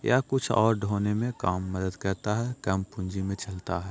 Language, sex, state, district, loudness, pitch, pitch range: Hindi, male, Bihar, Jahanabad, -29 LUFS, 100 Hz, 95-115 Hz